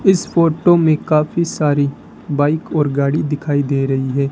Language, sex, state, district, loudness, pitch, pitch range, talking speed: Hindi, male, Rajasthan, Bikaner, -16 LUFS, 150 Hz, 140-160 Hz, 165 wpm